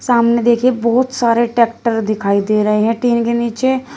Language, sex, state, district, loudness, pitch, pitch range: Hindi, female, Uttar Pradesh, Shamli, -15 LUFS, 235 Hz, 225-245 Hz